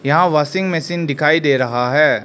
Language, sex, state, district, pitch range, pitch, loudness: Hindi, male, Arunachal Pradesh, Lower Dibang Valley, 140-165 Hz, 150 Hz, -16 LUFS